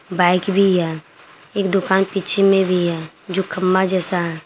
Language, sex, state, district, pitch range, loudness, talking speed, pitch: Hindi, female, Jharkhand, Garhwa, 175-195 Hz, -18 LUFS, 175 wpm, 185 Hz